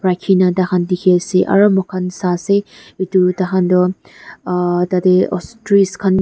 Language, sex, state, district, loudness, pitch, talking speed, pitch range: Nagamese, female, Nagaland, Dimapur, -15 LUFS, 185 Hz, 145 wpm, 180-190 Hz